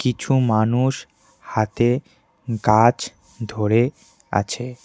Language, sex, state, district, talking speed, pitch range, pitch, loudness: Bengali, male, West Bengal, Cooch Behar, 75 wpm, 110-130 Hz, 120 Hz, -20 LUFS